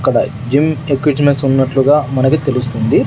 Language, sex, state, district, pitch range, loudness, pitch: Telugu, male, Andhra Pradesh, Sri Satya Sai, 130-145 Hz, -14 LUFS, 135 Hz